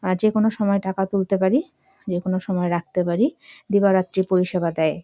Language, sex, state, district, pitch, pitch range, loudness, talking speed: Bengali, female, West Bengal, Jalpaiguri, 190 Hz, 180-210 Hz, -21 LUFS, 130 wpm